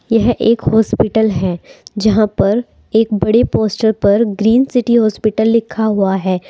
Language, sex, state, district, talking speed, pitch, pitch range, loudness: Hindi, female, Uttar Pradesh, Saharanpur, 150 wpm, 220 Hz, 205-225 Hz, -14 LUFS